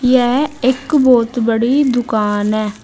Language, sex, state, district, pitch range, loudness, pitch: Hindi, female, Uttar Pradesh, Saharanpur, 225-260 Hz, -14 LUFS, 245 Hz